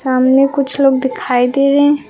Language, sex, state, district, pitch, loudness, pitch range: Hindi, female, Uttar Pradesh, Lucknow, 270 Hz, -13 LUFS, 260-280 Hz